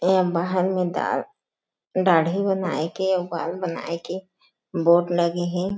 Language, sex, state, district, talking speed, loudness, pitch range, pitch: Chhattisgarhi, female, Chhattisgarh, Jashpur, 145 wpm, -23 LUFS, 170-190 Hz, 180 Hz